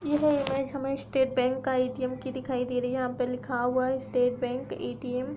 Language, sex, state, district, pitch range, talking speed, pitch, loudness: Hindi, female, Uttar Pradesh, Hamirpur, 250-270 Hz, 235 wpm, 255 Hz, -29 LUFS